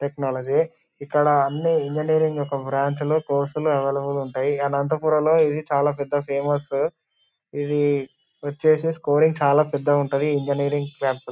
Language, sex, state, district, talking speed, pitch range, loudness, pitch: Telugu, male, Andhra Pradesh, Anantapur, 125 wpm, 140-150 Hz, -22 LUFS, 145 Hz